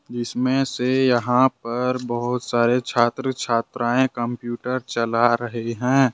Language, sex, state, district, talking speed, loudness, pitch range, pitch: Hindi, male, Jharkhand, Ranchi, 115 wpm, -21 LUFS, 120-130 Hz, 120 Hz